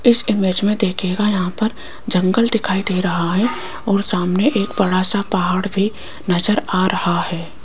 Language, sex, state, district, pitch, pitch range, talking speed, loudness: Hindi, female, Rajasthan, Jaipur, 195 Hz, 185-210 Hz, 175 wpm, -18 LUFS